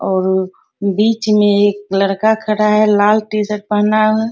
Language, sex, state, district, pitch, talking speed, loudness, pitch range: Hindi, female, Bihar, Bhagalpur, 210 Hz, 165 wpm, -14 LUFS, 200-215 Hz